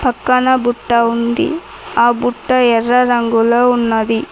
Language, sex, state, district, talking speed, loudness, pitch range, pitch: Telugu, female, Telangana, Mahabubabad, 110 wpm, -14 LUFS, 235-250 Hz, 240 Hz